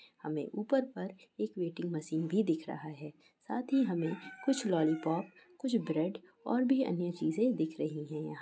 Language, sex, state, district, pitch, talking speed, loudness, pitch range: Hindi, female, Bihar, Sitamarhi, 175 Hz, 180 wpm, -34 LUFS, 160-235 Hz